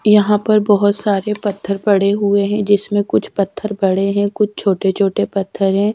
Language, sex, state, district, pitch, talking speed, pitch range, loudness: Hindi, female, Bihar, Katihar, 205 Hz, 190 wpm, 200-210 Hz, -16 LUFS